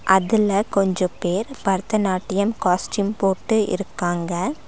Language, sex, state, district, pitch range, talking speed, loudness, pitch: Tamil, female, Tamil Nadu, Nilgiris, 185-210 Hz, 90 wpm, -21 LUFS, 195 Hz